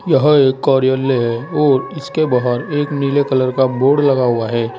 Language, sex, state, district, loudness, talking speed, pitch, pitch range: Hindi, male, Uttar Pradesh, Saharanpur, -15 LUFS, 190 wpm, 135 Hz, 125-145 Hz